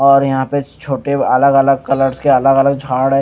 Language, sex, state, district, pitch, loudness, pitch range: Hindi, male, Punjab, Kapurthala, 135 Hz, -13 LUFS, 135-140 Hz